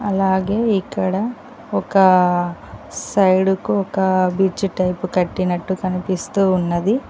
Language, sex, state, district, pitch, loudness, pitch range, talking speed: Telugu, female, Telangana, Mahabubabad, 190 Hz, -18 LUFS, 180-195 Hz, 85 wpm